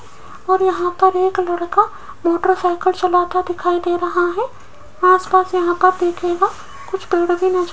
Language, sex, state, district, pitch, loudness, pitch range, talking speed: Hindi, female, Rajasthan, Jaipur, 365 Hz, -17 LUFS, 355-375 Hz, 145 wpm